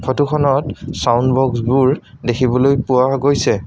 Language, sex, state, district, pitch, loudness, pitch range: Assamese, male, Assam, Sonitpur, 130 Hz, -16 LUFS, 125-140 Hz